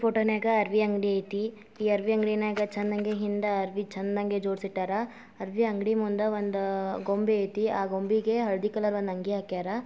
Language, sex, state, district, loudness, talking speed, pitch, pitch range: Kannada, female, Karnataka, Dharwad, -28 LUFS, 165 wpm, 210 Hz, 200-215 Hz